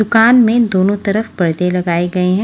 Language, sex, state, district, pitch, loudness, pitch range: Hindi, female, Haryana, Jhajjar, 200 Hz, -13 LUFS, 180-225 Hz